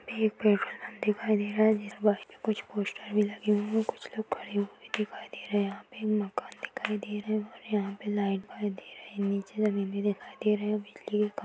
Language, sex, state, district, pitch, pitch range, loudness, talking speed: Hindi, female, Chhattisgarh, Balrampur, 210 Hz, 205-215 Hz, -31 LUFS, 230 wpm